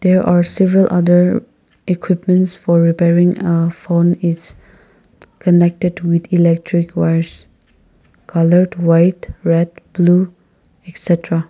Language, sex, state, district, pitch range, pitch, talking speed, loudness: English, female, Nagaland, Kohima, 170-180 Hz, 175 Hz, 105 wpm, -14 LUFS